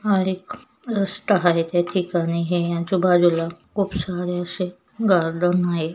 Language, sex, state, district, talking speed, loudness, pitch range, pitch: Marathi, female, Maharashtra, Chandrapur, 130 wpm, -21 LUFS, 175-195 Hz, 180 Hz